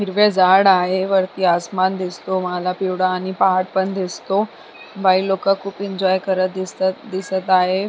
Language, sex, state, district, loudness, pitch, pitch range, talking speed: Marathi, female, Maharashtra, Sindhudurg, -18 LUFS, 190 Hz, 185-195 Hz, 150 wpm